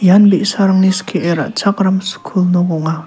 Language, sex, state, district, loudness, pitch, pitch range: Garo, male, Meghalaya, South Garo Hills, -14 LUFS, 190 Hz, 180-200 Hz